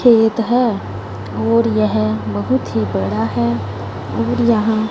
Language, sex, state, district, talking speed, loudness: Hindi, female, Punjab, Fazilka, 120 wpm, -17 LUFS